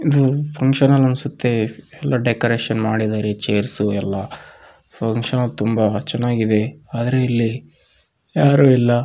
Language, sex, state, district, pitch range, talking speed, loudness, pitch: Kannada, male, Karnataka, Raichur, 110-135 Hz, 105 wpm, -18 LUFS, 120 Hz